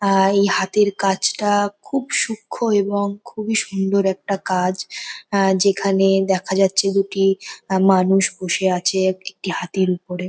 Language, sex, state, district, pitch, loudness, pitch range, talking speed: Bengali, female, West Bengal, North 24 Parganas, 195 Hz, -19 LUFS, 190-200 Hz, 130 wpm